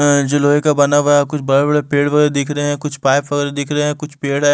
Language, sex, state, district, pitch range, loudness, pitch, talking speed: Hindi, male, Delhi, New Delhi, 145-150 Hz, -15 LUFS, 145 Hz, 290 wpm